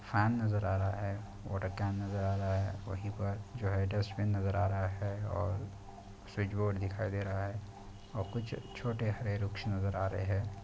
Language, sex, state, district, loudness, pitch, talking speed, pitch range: Hindi, male, Chhattisgarh, Bastar, -36 LUFS, 100 Hz, 190 wpm, 100-105 Hz